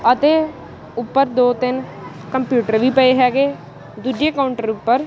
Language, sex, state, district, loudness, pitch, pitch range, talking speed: Punjabi, male, Punjab, Kapurthala, -17 LUFS, 255 Hz, 240-275 Hz, 130 wpm